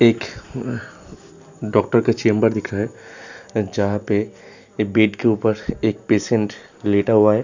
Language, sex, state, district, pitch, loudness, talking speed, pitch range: Hindi, male, Uttar Pradesh, Hamirpur, 110 Hz, -20 LUFS, 135 wpm, 105-115 Hz